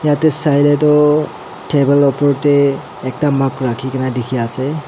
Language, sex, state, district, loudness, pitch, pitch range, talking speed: Nagamese, male, Nagaland, Dimapur, -14 LUFS, 140 Hz, 130-145 Hz, 145 wpm